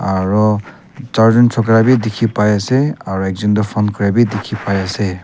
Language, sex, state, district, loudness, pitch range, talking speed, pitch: Nagamese, male, Nagaland, Kohima, -14 LUFS, 100-115 Hz, 195 wpm, 105 Hz